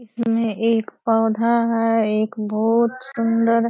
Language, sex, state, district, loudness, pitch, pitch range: Hindi, female, Bihar, Purnia, -20 LUFS, 230 Hz, 225-230 Hz